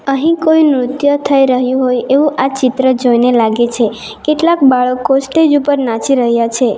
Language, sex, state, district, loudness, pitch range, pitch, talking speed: Gujarati, female, Gujarat, Valsad, -12 LUFS, 245-285 Hz, 260 Hz, 170 wpm